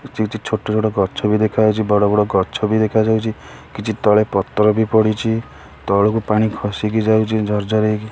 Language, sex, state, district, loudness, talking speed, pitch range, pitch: Odia, male, Odisha, Khordha, -17 LUFS, 175 wpm, 105-110 Hz, 110 Hz